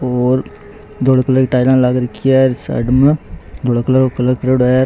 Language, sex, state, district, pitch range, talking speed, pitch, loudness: Rajasthani, male, Rajasthan, Churu, 125-130 Hz, 210 wpm, 130 Hz, -14 LUFS